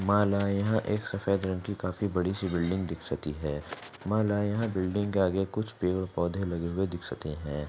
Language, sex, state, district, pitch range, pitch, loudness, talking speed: Hindi, female, Maharashtra, Aurangabad, 85-100 Hz, 95 Hz, -30 LUFS, 185 wpm